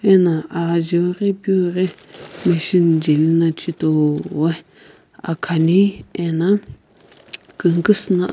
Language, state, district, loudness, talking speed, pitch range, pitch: Sumi, Nagaland, Kohima, -18 LUFS, 95 wpm, 165-185 Hz, 170 Hz